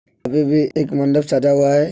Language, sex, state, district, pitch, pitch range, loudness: Hindi, male, Uttar Pradesh, Hamirpur, 145 Hz, 140-150 Hz, -17 LUFS